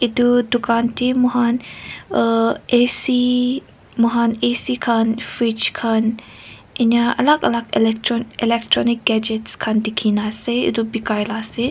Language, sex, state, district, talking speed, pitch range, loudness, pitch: Nagamese, female, Nagaland, Kohima, 135 wpm, 225-245 Hz, -18 LUFS, 235 Hz